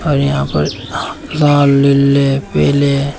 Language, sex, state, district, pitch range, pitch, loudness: Hindi, male, Uttar Pradesh, Shamli, 135-140 Hz, 140 Hz, -13 LUFS